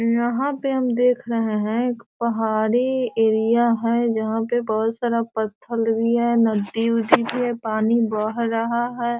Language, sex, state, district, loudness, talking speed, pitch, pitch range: Hindi, female, Bihar, Sitamarhi, -21 LUFS, 165 wpm, 230 Hz, 225-240 Hz